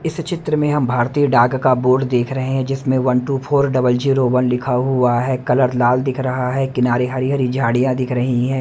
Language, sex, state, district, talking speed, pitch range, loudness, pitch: Hindi, male, Haryana, Rohtak, 230 wpm, 125-135 Hz, -17 LUFS, 130 Hz